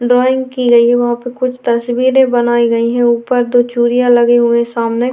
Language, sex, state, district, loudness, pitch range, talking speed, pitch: Hindi, female, Bihar, Vaishali, -12 LUFS, 235-250 Hz, 200 wpm, 240 Hz